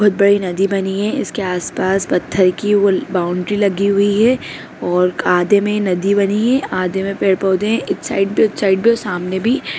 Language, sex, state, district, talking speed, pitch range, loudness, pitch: Hindi, female, Bihar, Begusarai, 200 wpm, 185-205 Hz, -16 LUFS, 195 Hz